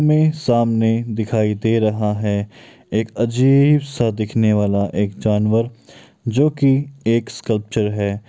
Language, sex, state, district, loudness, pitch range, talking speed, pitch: Maithili, male, Bihar, Muzaffarpur, -18 LUFS, 105-125 Hz, 130 wpm, 115 Hz